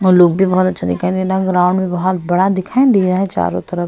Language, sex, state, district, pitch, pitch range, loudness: Hindi, female, Goa, North and South Goa, 185 Hz, 180-190 Hz, -15 LUFS